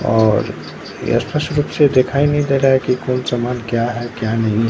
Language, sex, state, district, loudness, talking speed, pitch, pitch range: Hindi, male, Bihar, Katihar, -17 LUFS, 215 wpm, 125 Hz, 115-140 Hz